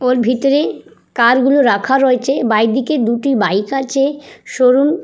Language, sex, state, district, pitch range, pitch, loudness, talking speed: Bengali, female, West Bengal, Purulia, 240-275 Hz, 260 Hz, -14 LUFS, 145 wpm